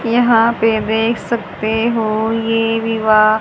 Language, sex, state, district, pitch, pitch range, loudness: Hindi, male, Haryana, Charkhi Dadri, 225 Hz, 220-230 Hz, -15 LUFS